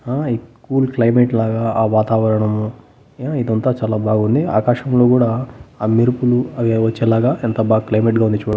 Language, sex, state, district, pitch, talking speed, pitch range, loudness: Telugu, male, Andhra Pradesh, Annamaya, 115 Hz, 175 wpm, 110-125 Hz, -16 LUFS